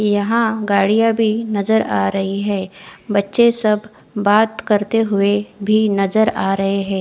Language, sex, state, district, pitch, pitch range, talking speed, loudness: Hindi, female, Odisha, Khordha, 210 Hz, 200-220 Hz, 145 wpm, -17 LUFS